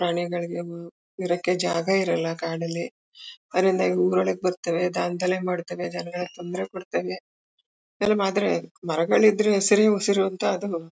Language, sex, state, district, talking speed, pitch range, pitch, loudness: Kannada, female, Karnataka, Mysore, 115 wpm, 170-195 Hz, 175 Hz, -24 LUFS